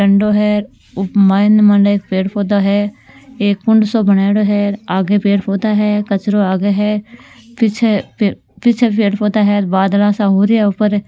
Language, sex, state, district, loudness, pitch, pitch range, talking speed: Marwari, female, Rajasthan, Nagaur, -14 LUFS, 205 Hz, 200-210 Hz, 190 wpm